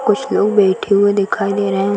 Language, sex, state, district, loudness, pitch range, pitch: Hindi, female, Bihar, Gaya, -15 LUFS, 195-205 Hz, 200 Hz